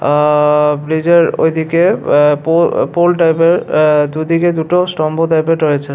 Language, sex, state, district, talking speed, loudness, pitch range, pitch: Bengali, male, West Bengal, Paschim Medinipur, 140 wpm, -12 LUFS, 150-170 Hz, 160 Hz